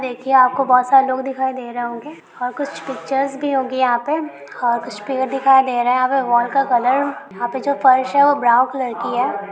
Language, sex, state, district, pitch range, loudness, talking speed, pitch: Hindi, female, Bihar, Kishanganj, 245-270 Hz, -17 LUFS, 240 wpm, 260 Hz